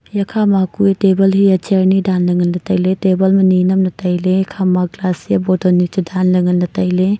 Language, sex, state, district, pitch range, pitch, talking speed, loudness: Wancho, female, Arunachal Pradesh, Longding, 180-195 Hz, 185 Hz, 215 wpm, -14 LUFS